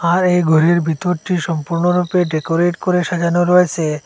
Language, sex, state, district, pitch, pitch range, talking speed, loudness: Bengali, male, Assam, Hailakandi, 175 Hz, 165-180 Hz, 135 wpm, -16 LUFS